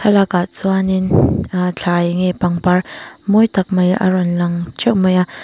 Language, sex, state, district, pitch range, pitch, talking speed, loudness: Mizo, female, Mizoram, Aizawl, 175-190 Hz, 185 Hz, 145 wpm, -15 LUFS